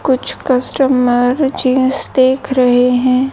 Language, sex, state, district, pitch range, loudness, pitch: Hindi, female, Haryana, Jhajjar, 250-265 Hz, -13 LUFS, 255 Hz